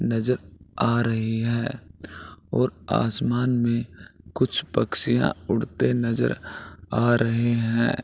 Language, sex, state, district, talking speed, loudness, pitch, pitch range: Hindi, male, Bihar, Gopalganj, 105 wpm, -23 LUFS, 115 Hz, 110-120 Hz